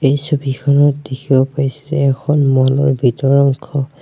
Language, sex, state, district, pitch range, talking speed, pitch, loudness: Assamese, male, Assam, Sonitpur, 135-145 Hz, 150 wpm, 140 Hz, -15 LUFS